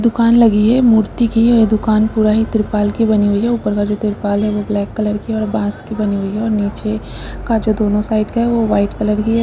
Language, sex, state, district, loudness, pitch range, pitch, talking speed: Hindi, female, West Bengal, Purulia, -15 LUFS, 205-225 Hz, 215 Hz, 275 wpm